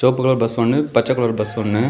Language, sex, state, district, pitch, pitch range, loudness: Tamil, male, Tamil Nadu, Kanyakumari, 120 Hz, 115-130 Hz, -18 LUFS